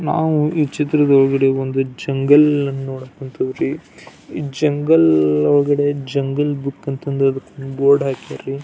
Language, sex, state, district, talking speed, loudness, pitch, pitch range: Kannada, male, Karnataka, Belgaum, 125 wpm, -17 LUFS, 140 Hz, 135-145 Hz